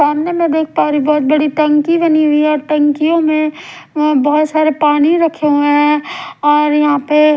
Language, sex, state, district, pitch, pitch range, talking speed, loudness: Hindi, female, Odisha, Sambalpur, 300 Hz, 295-310 Hz, 185 wpm, -13 LUFS